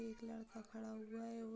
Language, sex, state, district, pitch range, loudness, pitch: Hindi, female, Uttar Pradesh, Budaun, 225-230 Hz, -51 LUFS, 225 Hz